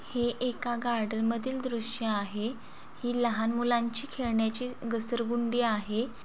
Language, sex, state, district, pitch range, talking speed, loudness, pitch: Marathi, female, Maharashtra, Solapur, 225-245 Hz, 125 wpm, -30 LUFS, 235 Hz